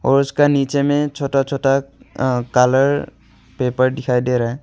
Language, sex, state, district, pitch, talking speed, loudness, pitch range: Hindi, male, Arunachal Pradesh, Longding, 135 Hz, 140 wpm, -18 LUFS, 125-140 Hz